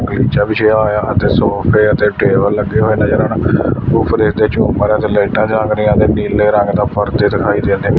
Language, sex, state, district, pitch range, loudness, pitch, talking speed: Punjabi, male, Punjab, Fazilka, 105-110 Hz, -13 LUFS, 105 Hz, 180 wpm